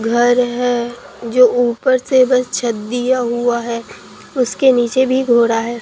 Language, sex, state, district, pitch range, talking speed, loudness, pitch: Hindi, female, Bihar, Katihar, 235-250 Hz, 155 wpm, -15 LUFS, 240 Hz